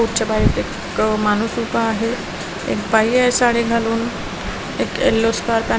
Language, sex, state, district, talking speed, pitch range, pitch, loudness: Marathi, female, Maharashtra, Washim, 155 wpm, 215-230 Hz, 225 Hz, -18 LUFS